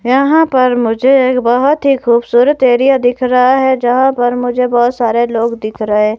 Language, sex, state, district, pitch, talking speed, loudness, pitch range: Hindi, female, Himachal Pradesh, Shimla, 250 Hz, 185 wpm, -11 LUFS, 240-260 Hz